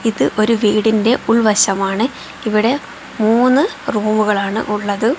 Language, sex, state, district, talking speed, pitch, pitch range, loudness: Malayalam, female, Kerala, Kozhikode, 105 wpm, 220 Hz, 210-235 Hz, -15 LUFS